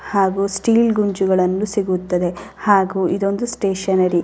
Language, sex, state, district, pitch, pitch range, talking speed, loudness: Kannada, female, Karnataka, Raichur, 195 Hz, 185-205 Hz, 115 wpm, -18 LUFS